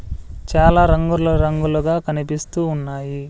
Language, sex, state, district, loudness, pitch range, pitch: Telugu, male, Andhra Pradesh, Sri Satya Sai, -18 LUFS, 140-165 Hz, 155 Hz